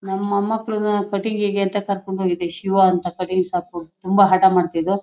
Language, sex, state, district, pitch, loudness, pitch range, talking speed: Kannada, female, Karnataka, Shimoga, 190 Hz, -19 LUFS, 180-200 Hz, 165 wpm